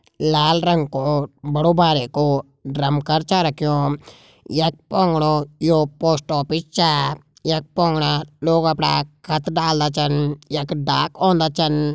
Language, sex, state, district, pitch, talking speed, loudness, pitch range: Garhwali, male, Uttarakhand, Uttarkashi, 150 Hz, 130 wpm, -19 LUFS, 145-160 Hz